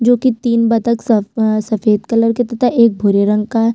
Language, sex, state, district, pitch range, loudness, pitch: Hindi, female, Chhattisgarh, Sukma, 215-235 Hz, -14 LUFS, 230 Hz